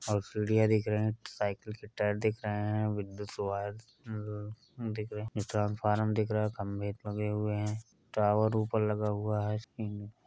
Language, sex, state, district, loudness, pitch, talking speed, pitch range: Hindi, male, Uttar Pradesh, Varanasi, -33 LUFS, 105 Hz, 150 wpm, 105-110 Hz